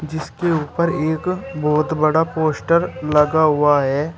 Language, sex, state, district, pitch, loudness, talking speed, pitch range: Hindi, male, Uttar Pradesh, Shamli, 155 Hz, -18 LUFS, 130 wpm, 150-165 Hz